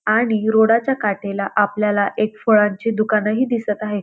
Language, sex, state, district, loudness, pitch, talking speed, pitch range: Marathi, female, Maharashtra, Dhule, -18 LUFS, 215 Hz, 165 wpm, 205-220 Hz